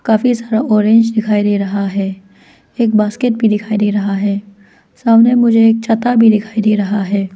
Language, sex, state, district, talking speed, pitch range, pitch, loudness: Hindi, female, Arunachal Pradesh, Lower Dibang Valley, 190 wpm, 205-225 Hz, 215 Hz, -13 LUFS